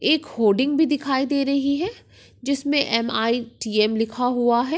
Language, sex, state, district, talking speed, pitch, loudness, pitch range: Hindi, female, Maharashtra, Sindhudurg, 150 wpm, 265 Hz, -21 LUFS, 235-285 Hz